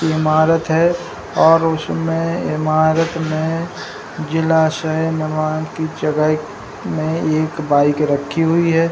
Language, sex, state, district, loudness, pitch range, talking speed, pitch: Hindi, male, Bihar, Jahanabad, -17 LUFS, 155-165 Hz, 115 wpm, 160 Hz